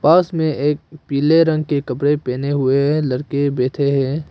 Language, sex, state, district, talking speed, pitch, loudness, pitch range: Hindi, female, Arunachal Pradesh, Papum Pare, 165 wpm, 145 Hz, -18 LUFS, 140-155 Hz